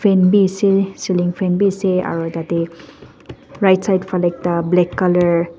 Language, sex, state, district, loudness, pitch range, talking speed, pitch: Nagamese, female, Nagaland, Dimapur, -17 LUFS, 175-195 Hz, 150 wpm, 180 Hz